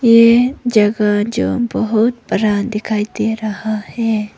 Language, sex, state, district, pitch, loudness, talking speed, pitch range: Hindi, female, Arunachal Pradesh, Papum Pare, 220 Hz, -15 LUFS, 125 wpm, 210-230 Hz